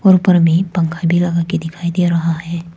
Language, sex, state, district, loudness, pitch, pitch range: Hindi, female, Arunachal Pradesh, Papum Pare, -15 LUFS, 170 Hz, 165-175 Hz